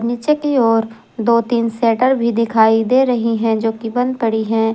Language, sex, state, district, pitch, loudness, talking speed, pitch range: Hindi, female, Jharkhand, Garhwa, 230 Hz, -16 LUFS, 215 wpm, 225-245 Hz